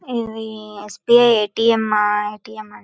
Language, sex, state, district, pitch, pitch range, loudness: Telugu, female, Andhra Pradesh, Visakhapatnam, 220 Hz, 210-230 Hz, -17 LUFS